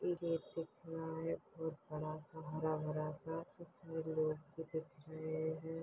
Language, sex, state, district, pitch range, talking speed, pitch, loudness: Hindi, female, Chhattisgarh, Balrampur, 155-165 Hz, 145 wpm, 160 Hz, -43 LUFS